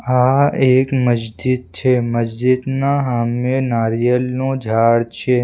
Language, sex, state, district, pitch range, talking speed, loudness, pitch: Gujarati, male, Gujarat, Valsad, 115-130 Hz, 100 wpm, -17 LUFS, 125 Hz